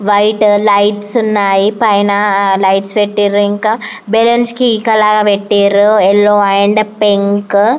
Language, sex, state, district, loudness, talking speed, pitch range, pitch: Telugu, female, Andhra Pradesh, Anantapur, -11 LUFS, 125 wpm, 200-215 Hz, 205 Hz